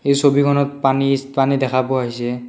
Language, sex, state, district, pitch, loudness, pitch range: Assamese, male, Assam, Kamrup Metropolitan, 135 Hz, -17 LUFS, 130-140 Hz